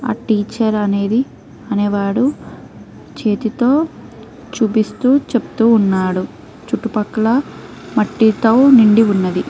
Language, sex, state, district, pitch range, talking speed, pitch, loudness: Telugu, female, Andhra Pradesh, Krishna, 205-245 Hz, 80 wpm, 220 Hz, -15 LUFS